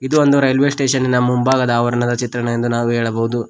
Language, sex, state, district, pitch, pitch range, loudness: Kannada, male, Karnataka, Koppal, 125 Hz, 120-130 Hz, -16 LUFS